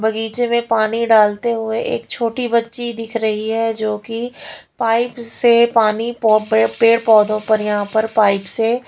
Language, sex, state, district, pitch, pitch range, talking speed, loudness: Hindi, female, Haryana, Rohtak, 225 Hz, 215-235 Hz, 155 wpm, -16 LUFS